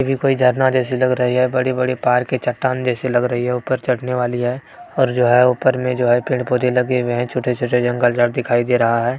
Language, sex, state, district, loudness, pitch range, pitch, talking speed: Maithili, male, Bihar, Bhagalpur, -17 LUFS, 125-130 Hz, 125 Hz, 250 wpm